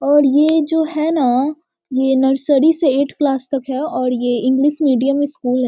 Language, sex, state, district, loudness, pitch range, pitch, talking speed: Hindi, female, Bihar, Sitamarhi, -16 LUFS, 260-300 Hz, 280 Hz, 190 wpm